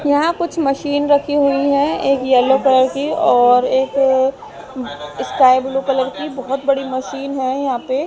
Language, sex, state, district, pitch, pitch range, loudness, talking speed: Hindi, female, Haryana, Jhajjar, 270 Hz, 260-285 Hz, -16 LUFS, 165 wpm